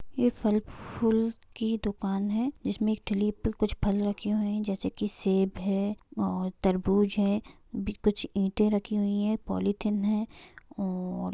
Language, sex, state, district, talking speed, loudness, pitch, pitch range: Hindi, female, Bihar, Sitamarhi, 170 wpm, -29 LUFS, 210 Hz, 200-215 Hz